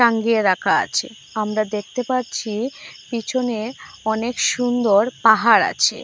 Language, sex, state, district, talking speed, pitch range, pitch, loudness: Bengali, female, Assam, Hailakandi, 110 wpm, 215-250 Hz, 230 Hz, -19 LUFS